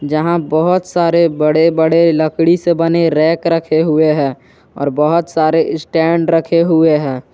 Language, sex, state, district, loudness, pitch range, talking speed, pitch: Hindi, male, Jharkhand, Garhwa, -13 LUFS, 155-170 Hz, 145 wpm, 160 Hz